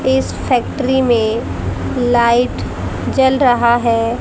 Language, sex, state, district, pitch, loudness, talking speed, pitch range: Hindi, female, Haryana, Jhajjar, 245 Hz, -15 LUFS, 100 wpm, 235-260 Hz